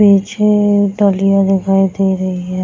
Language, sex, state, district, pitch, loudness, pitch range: Hindi, female, Bihar, Darbhanga, 195 Hz, -13 LUFS, 190-205 Hz